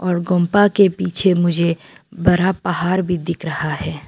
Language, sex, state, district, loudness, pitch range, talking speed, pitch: Hindi, female, Arunachal Pradesh, Papum Pare, -17 LUFS, 170-185 Hz, 160 wpm, 180 Hz